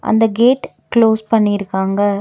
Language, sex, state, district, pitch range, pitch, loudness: Tamil, female, Tamil Nadu, Nilgiris, 200-225 Hz, 220 Hz, -15 LUFS